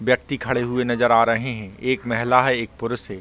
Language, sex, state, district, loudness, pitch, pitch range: Hindi, male, Chhattisgarh, Korba, -21 LUFS, 120 Hz, 115-125 Hz